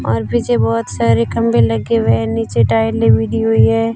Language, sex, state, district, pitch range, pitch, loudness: Hindi, female, Rajasthan, Bikaner, 110-115 Hz, 115 Hz, -14 LUFS